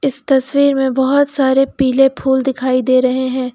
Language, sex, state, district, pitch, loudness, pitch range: Hindi, female, Uttar Pradesh, Lucknow, 265 Hz, -14 LUFS, 260-270 Hz